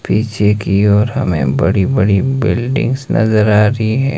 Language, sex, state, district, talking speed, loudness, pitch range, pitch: Hindi, male, Himachal Pradesh, Shimla, 160 wpm, -13 LUFS, 100-125 Hz, 105 Hz